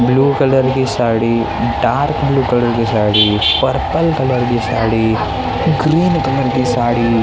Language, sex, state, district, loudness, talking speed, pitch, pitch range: Hindi, male, Maharashtra, Mumbai Suburban, -14 LUFS, 155 wpm, 120 Hz, 115-135 Hz